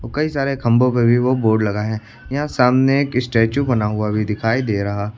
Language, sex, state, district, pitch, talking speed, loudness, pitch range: Hindi, male, Uttar Pradesh, Lucknow, 120 Hz, 220 wpm, -18 LUFS, 110-130 Hz